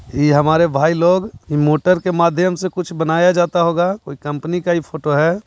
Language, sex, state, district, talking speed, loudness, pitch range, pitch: Hindi, male, Bihar, Jahanabad, 210 wpm, -16 LUFS, 150-180 Hz, 170 Hz